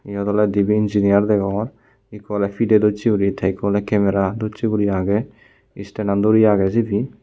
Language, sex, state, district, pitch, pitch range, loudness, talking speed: Chakma, male, Tripura, Unakoti, 105 Hz, 100-110 Hz, -18 LUFS, 185 wpm